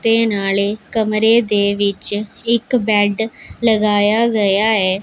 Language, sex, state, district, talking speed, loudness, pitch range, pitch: Punjabi, female, Punjab, Pathankot, 110 wpm, -15 LUFS, 205-225 Hz, 215 Hz